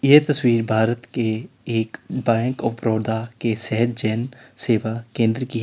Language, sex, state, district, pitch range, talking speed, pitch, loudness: Hindi, male, Uttar Pradesh, Lalitpur, 110-125 Hz, 150 wpm, 115 Hz, -22 LUFS